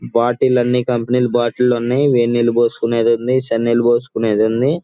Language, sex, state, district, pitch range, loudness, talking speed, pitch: Telugu, male, Andhra Pradesh, Guntur, 115-125 Hz, -16 LUFS, 135 wpm, 120 Hz